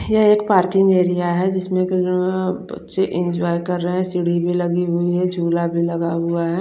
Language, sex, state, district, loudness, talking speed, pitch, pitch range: Hindi, female, Chandigarh, Chandigarh, -19 LUFS, 190 wpm, 180 Hz, 170-185 Hz